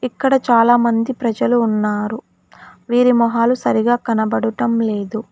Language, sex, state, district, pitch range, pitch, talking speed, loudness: Telugu, female, Telangana, Hyderabad, 220-240 Hz, 230 Hz, 100 wpm, -16 LUFS